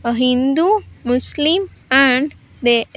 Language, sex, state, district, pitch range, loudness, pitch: English, female, Andhra Pradesh, Sri Satya Sai, 245-305 Hz, -16 LUFS, 265 Hz